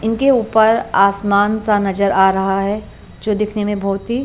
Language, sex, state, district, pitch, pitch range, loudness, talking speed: Hindi, female, Punjab, Pathankot, 205 Hz, 195-220 Hz, -16 LUFS, 185 wpm